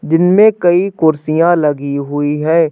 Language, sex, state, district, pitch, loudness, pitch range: Hindi, male, Uttar Pradesh, Hamirpur, 160 Hz, -13 LUFS, 150-175 Hz